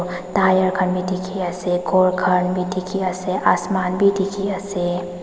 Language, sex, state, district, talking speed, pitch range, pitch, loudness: Nagamese, female, Nagaland, Dimapur, 125 wpm, 180-190 Hz, 185 Hz, -20 LUFS